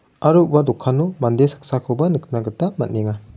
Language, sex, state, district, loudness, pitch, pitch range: Garo, male, Meghalaya, West Garo Hills, -19 LUFS, 135 Hz, 120-155 Hz